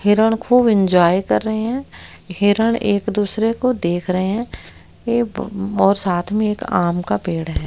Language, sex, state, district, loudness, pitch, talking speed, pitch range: Hindi, female, Haryana, Rohtak, -18 LUFS, 205 Hz, 180 wpm, 180-225 Hz